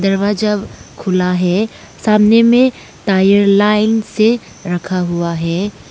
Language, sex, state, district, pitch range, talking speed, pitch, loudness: Hindi, female, Arunachal Pradesh, Lower Dibang Valley, 180-215 Hz, 110 wpm, 200 Hz, -14 LUFS